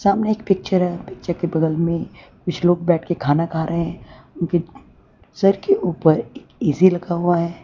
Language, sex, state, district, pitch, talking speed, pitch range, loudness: Hindi, female, Gujarat, Valsad, 175 Hz, 190 wpm, 165-185 Hz, -20 LUFS